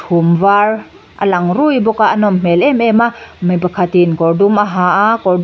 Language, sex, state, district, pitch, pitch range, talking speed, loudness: Mizo, female, Mizoram, Aizawl, 200 Hz, 180-220 Hz, 255 wpm, -12 LUFS